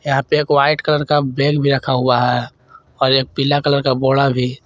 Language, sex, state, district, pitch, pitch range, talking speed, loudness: Hindi, male, Jharkhand, Garhwa, 135 Hz, 130-145 Hz, 230 wpm, -16 LUFS